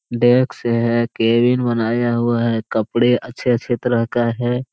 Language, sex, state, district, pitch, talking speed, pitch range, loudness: Hindi, male, Bihar, Jamui, 120 Hz, 140 wpm, 115-120 Hz, -18 LUFS